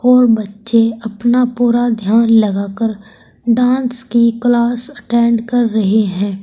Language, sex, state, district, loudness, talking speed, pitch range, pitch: Hindi, female, Uttar Pradesh, Saharanpur, -14 LUFS, 130 wpm, 220-240 Hz, 230 Hz